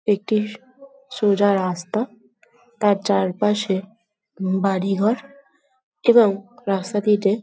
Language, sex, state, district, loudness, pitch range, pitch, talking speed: Bengali, female, West Bengal, Jhargram, -21 LUFS, 195-235 Hz, 210 Hz, 90 wpm